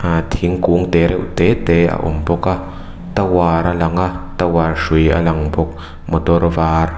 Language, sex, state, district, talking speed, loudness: Mizo, female, Mizoram, Aizawl, 200 wpm, -16 LUFS